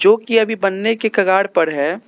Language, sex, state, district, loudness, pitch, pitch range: Hindi, male, Arunachal Pradesh, Lower Dibang Valley, -16 LUFS, 205 Hz, 190-225 Hz